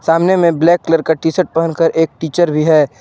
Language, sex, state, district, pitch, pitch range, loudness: Hindi, male, Jharkhand, Ranchi, 165 Hz, 160-170 Hz, -13 LUFS